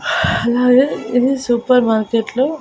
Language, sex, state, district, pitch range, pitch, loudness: Telugu, female, Andhra Pradesh, Annamaya, 235-260 Hz, 250 Hz, -15 LUFS